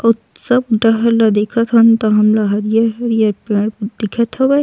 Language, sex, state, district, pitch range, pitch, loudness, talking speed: Chhattisgarhi, female, Chhattisgarh, Sukma, 215-230 Hz, 225 Hz, -14 LUFS, 155 wpm